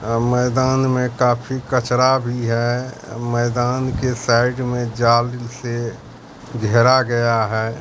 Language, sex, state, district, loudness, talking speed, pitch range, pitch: Hindi, male, Bihar, Katihar, -18 LUFS, 125 wpm, 115-130 Hz, 120 Hz